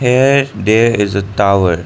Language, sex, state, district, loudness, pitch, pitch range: English, male, Arunachal Pradesh, Lower Dibang Valley, -12 LUFS, 105 Hz, 100-125 Hz